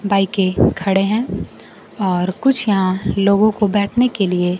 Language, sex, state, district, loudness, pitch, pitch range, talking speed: Hindi, female, Bihar, Kaimur, -16 LUFS, 200 Hz, 190-210 Hz, 145 wpm